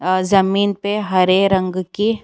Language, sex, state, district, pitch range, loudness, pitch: Hindi, female, Uttar Pradesh, Jyotiba Phule Nagar, 185-205 Hz, -17 LUFS, 195 Hz